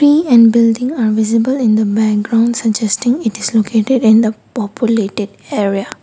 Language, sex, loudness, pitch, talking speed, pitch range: English, female, -13 LUFS, 225 Hz, 150 wpm, 215-240 Hz